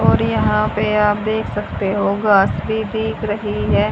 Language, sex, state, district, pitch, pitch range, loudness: Hindi, female, Haryana, Rohtak, 210 Hz, 195-215 Hz, -18 LUFS